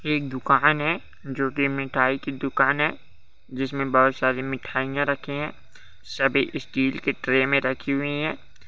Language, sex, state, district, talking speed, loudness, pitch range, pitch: Hindi, male, Bihar, Bhagalpur, 165 wpm, -24 LUFS, 130-140 Hz, 135 Hz